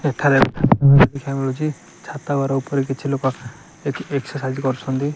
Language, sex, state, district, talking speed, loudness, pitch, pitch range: Odia, male, Odisha, Nuapada, 130 wpm, -19 LUFS, 140 Hz, 135-145 Hz